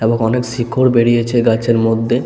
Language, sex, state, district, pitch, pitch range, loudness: Bengali, male, West Bengal, Paschim Medinipur, 115 Hz, 115-120 Hz, -14 LUFS